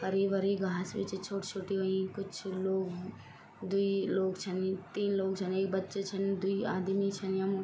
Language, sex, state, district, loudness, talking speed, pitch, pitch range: Garhwali, female, Uttarakhand, Tehri Garhwal, -34 LUFS, 190 wpm, 195 Hz, 190-195 Hz